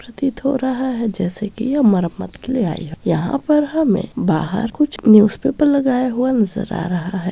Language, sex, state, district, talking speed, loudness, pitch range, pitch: Hindi, female, Bihar, Araria, 195 wpm, -18 LUFS, 185-260 Hz, 230 Hz